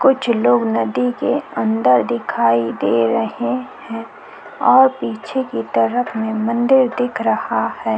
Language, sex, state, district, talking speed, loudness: Hindi, female, Bihar, Vaishali, 135 wpm, -17 LUFS